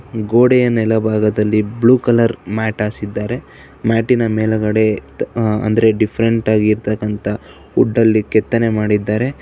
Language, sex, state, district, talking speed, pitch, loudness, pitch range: Kannada, male, Karnataka, Bangalore, 95 wpm, 110 Hz, -16 LUFS, 105-115 Hz